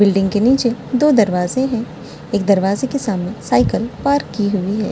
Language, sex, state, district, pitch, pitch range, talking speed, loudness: Hindi, female, Delhi, New Delhi, 210 Hz, 195-250 Hz, 195 wpm, -17 LUFS